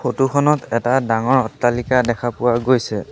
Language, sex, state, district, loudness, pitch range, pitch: Assamese, male, Assam, Sonitpur, -18 LUFS, 120-130 Hz, 120 Hz